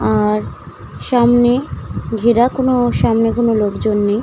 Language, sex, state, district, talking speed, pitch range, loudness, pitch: Bengali, female, West Bengal, Malda, 125 wpm, 205-240 Hz, -15 LUFS, 230 Hz